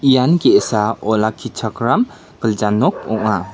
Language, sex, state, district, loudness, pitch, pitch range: Garo, male, Meghalaya, West Garo Hills, -17 LUFS, 110 Hz, 105-115 Hz